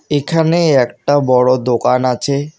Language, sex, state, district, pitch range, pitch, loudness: Bengali, male, West Bengal, Alipurduar, 125-145 Hz, 130 Hz, -14 LUFS